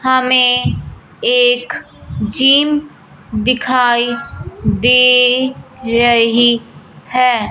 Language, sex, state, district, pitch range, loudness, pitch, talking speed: Hindi, female, Punjab, Fazilka, 240-260 Hz, -12 LUFS, 250 Hz, 55 wpm